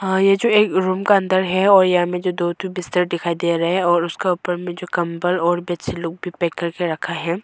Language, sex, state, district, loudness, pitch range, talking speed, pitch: Hindi, female, Arunachal Pradesh, Longding, -19 LUFS, 170-185 Hz, 235 wpm, 180 Hz